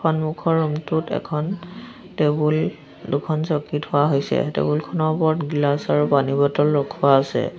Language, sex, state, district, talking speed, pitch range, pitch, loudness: Assamese, female, Assam, Sonitpur, 120 wpm, 145-160 Hz, 150 Hz, -21 LUFS